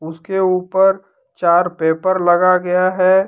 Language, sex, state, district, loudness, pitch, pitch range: Hindi, male, Jharkhand, Deoghar, -15 LUFS, 185 Hz, 175-190 Hz